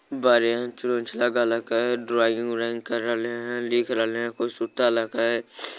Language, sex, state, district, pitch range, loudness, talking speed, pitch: Magahi, male, Bihar, Jamui, 115-120 Hz, -25 LUFS, 175 wpm, 120 Hz